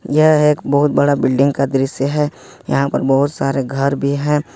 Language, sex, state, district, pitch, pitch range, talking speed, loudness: Hindi, male, Jharkhand, Ranchi, 140 Hz, 135-145 Hz, 195 wpm, -16 LUFS